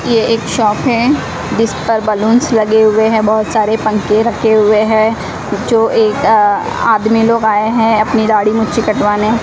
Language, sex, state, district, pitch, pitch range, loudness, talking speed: Hindi, female, Odisha, Malkangiri, 220 Hz, 215-225 Hz, -12 LUFS, 165 wpm